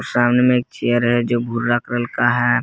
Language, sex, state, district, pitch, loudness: Hindi, male, Jharkhand, Garhwa, 120 Hz, -18 LUFS